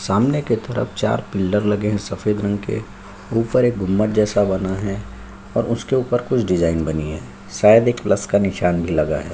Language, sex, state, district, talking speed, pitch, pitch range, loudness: Hindi, male, Chhattisgarh, Sukma, 200 wpm, 100 Hz, 95-115 Hz, -19 LUFS